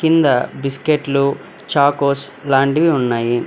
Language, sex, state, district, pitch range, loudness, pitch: Telugu, male, Telangana, Hyderabad, 135-150 Hz, -16 LUFS, 140 Hz